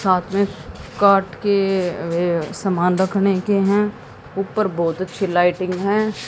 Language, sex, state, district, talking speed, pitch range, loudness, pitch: Hindi, female, Haryana, Jhajjar, 125 wpm, 175-200 Hz, -19 LUFS, 190 Hz